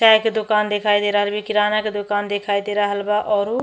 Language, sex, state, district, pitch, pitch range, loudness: Bhojpuri, female, Uttar Pradesh, Ghazipur, 210 Hz, 205-215 Hz, -19 LUFS